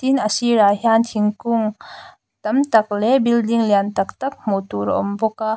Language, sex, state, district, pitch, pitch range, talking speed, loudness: Mizo, female, Mizoram, Aizawl, 220 Hz, 205-235 Hz, 195 wpm, -18 LUFS